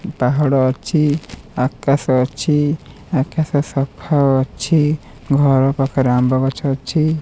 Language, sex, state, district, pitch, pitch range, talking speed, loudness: Odia, male, Odisha, Khordha, 140 Hz, 130-150 Hz, 100 wpm, -17 LUFS